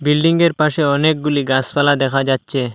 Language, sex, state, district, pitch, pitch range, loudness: Bengali, male, Assam, Hailakandi, 145 Hz, 135-155 Hz, -16 LUFS